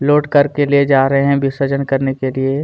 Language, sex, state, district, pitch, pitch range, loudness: Hindi, male, Chhattisgarh, Kabirdham, 140 Hz, 135-140 Hz, -15 LUFS